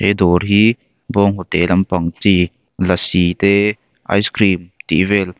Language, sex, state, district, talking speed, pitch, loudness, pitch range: Mizo, male, Mizoram, Aizawl, 145 wpm, 95 Hz, -15 LUFS, 90-100 Hz